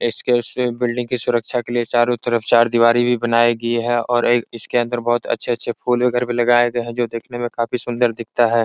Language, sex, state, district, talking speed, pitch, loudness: Hindi, male, Uttar Pradesh, Etah, 235 wpm, 120 Hz, -18 LUFS